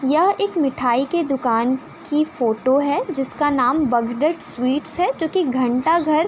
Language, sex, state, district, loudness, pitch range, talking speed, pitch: Hindi, female, Uttar Pradesh, Budaun, -19 LUFS, 250-320 Hz, 155 wpm, 285 Hz